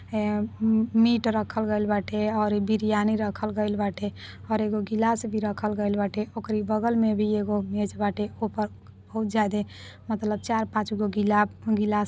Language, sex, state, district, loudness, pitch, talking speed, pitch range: Bhojpuri, female, Uttar Pradesh, Deoria, -26 LUFS, 210 Hz, 175 wpm, 210-220 Hz